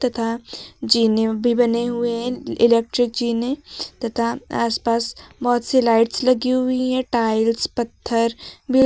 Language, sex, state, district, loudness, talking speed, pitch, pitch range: Hindi, female, Uttar Pradesh, Lucknow, -20 LUFS, 135 wpm, 235 Hz, 230-250 Hz